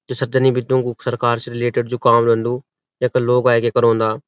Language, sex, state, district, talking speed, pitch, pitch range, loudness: Garhwali, male, Uttarakhand, Uttarkashi, 195 wpm, 125 Hz, 120-130 Hz, -17 LUFS